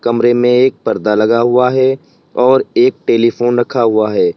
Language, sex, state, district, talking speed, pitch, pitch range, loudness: Hindi, male, Uttar Pradesh, Lalitpur, 180 wpm, 120 Hz, 115-130 Hz, -12 LUFS